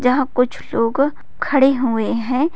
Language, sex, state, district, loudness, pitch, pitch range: Hindi, female, Bihar, Bhagalpur, -18 LUFS, 255 Hz, 235-275 Hz